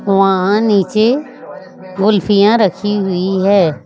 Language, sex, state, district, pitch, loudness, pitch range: Hindi, female, Chhattisgarh, Raipur, 200 Hz, -13 LUFS, 190-210 Hz